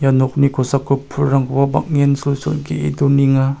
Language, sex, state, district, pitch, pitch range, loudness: Garo, male, Meghalaya, South Garo Hills, 140 Hz, 135-140 Hz, -16 LUFS